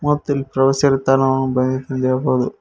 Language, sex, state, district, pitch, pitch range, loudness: Kannada, male, Karnataka, Koppal, 135 Hz, 130-140 Hz, -17 LUFS